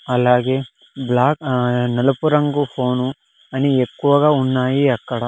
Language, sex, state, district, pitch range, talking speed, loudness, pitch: Telugu, male, Andhra Pradesh, Sri Satya Sai, 125-140 Hz, 100 wpm, -18 LUFS, 130 Hz